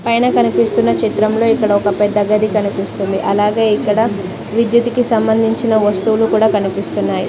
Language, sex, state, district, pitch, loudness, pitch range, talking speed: Telugu, female, Telangana, Mahabubabad, 215 Hz, -14 LUFS, 200-225 Hz, 125 wpm